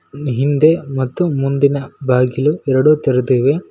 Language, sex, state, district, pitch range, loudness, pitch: Kannada, male, Karnataka, Koppal, 130-150 Hz, -15 LUFS, 140 Hz